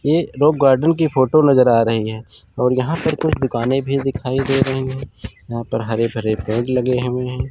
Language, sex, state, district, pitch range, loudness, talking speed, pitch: Hindi, male, Chandigarh, Chandigarh, 115-135 Hz, -18 LUFS, 215 wpm, 130 Hz